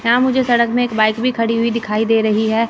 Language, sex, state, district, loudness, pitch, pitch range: Hindi, female, Chandigarh, Chandigarh, -16 LUFS, 230 Hz, 220-240 Hz